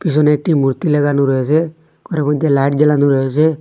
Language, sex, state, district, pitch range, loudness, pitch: Bengali, male, Assam, Hailakandi, 140-155 Hz, -14 LUFS, 150 Hz